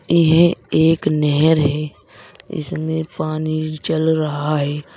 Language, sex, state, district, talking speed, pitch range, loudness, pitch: Hindi, male, Uttar Pradesh, Saharanpur, 110 wpm, 150-160 Hz, -18 LUFS, 155 Hz